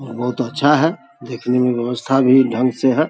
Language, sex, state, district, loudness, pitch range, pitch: Hindi, male, Bihar, Saharsa, -17 LUFS, 125-135 Hz, 125 Hz